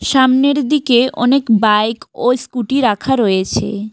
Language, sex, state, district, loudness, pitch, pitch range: Bengali, female, West Bengal, Alipurduar, -14 LUFS, 250 Hz, 220-265 Hz